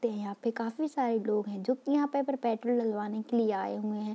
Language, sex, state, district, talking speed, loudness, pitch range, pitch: Hindi, female, Bihar, Darbhanga, 275 wpm, -31 LUFS, 215-250 Hz, 230 Hz